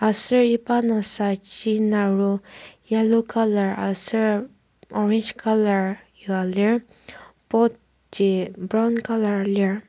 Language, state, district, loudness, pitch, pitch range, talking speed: Ao, Nagaland, Kohima, -20 LUFS, 215 Hz, 200-225 Hz, 95 wpm